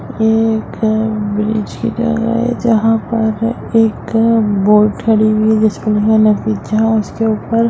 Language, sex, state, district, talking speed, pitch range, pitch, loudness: Hindi, female, Bihar, Gaya, 130 wpm, 215-225 Hz, 220 Hz, -14 LUFS